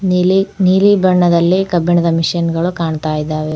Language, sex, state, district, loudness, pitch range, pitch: Kannada, female, Karnataka, Koppal, -13 LUFS, 165-185 Hz, 175 Hz